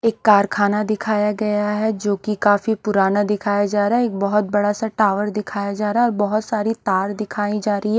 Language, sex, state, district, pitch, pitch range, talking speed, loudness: Hindi, male, Odisha, Nuapada, 210 Hz, 205-215 Hz, 220 wpm, -19 LUFS